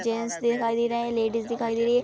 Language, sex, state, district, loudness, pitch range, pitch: Hindi, female, Bihar, Araria, -26 LUFS, 230-235 Hz, 230 Hz